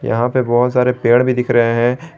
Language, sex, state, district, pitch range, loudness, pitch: Hindi, male, Jharkhand, Garhwa, 120-125 Hz, -14 LUFS, 125 Hz